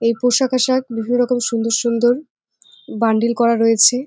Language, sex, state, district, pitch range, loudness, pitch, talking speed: Bengali, female, West Bengal, Jalpaiguri, 230-250 Hz, -17 LUFS, 235 Hz, 145 wpm